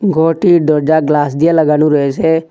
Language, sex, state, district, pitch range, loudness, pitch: Bengali, male, Assam, Hailakandi, 150-165 Hz, -12 LUFS, 160 Hz